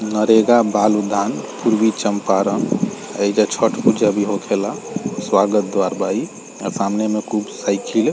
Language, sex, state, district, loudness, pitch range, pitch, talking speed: Bhojpuri, male, Bihar, East Champaran, -18 LUFS, 100-110 Hz, 105 Hz, 145 wpm